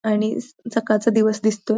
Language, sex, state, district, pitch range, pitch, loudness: Marathi, female, Maharashtra, Pune, 215-230 Hz, 220 Hz, -21 LUFS